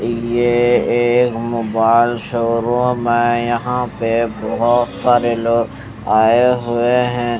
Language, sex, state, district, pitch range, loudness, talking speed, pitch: Hindi, male, Chandigarh, Chandigarh, 115-120 Hz, -16 LUFS, 105 wpm, 120 Hz